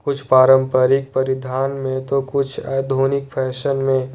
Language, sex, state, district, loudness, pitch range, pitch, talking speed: Hindi, male, Jharkhand, Ranchi, -18 LUFS, 130-135 Hz, 135 Hz, 130 wpm